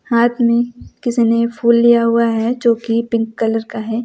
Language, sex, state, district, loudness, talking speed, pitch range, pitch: Hindi, female, Uttar Pradesh, Lucknow, -15 LUFS, 180 wpm, 230-235 Hz, 235 Hz